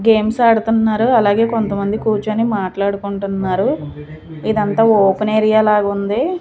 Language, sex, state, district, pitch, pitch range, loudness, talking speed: Telugu, female, Andhra Pradesh, Manyam, 215 Hz, 200-220 Hz, -16 LUFS, 95 wpm